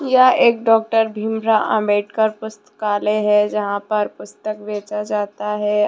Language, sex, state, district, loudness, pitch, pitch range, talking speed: Hindi, female, Jharkhand, Deoghar, -18 LUFS, 210 Hz, 210-220 Hz, 135 wpm